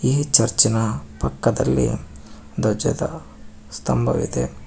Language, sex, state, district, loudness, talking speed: Kannada, male, Karnataka, Koppal, -20 LUFS, 75 wpm